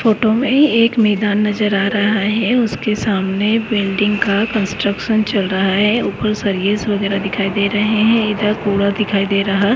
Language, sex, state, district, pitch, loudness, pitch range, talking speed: Hindi, male, West Bengal, Jalpaiguri, 210 Hz, -16 LUFS, 200-220 Hz, 170 wpm